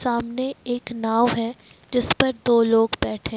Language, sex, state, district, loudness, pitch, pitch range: Hindi, male, Jharkhand, Ranchi, -22 LUFS, 235 Hz, 225-245 Hz